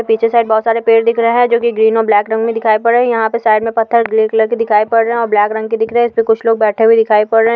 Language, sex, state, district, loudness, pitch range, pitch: Hindi, female, Goa, North and South Goa, -12 LUFS, 220-230 Hz, 225 Hz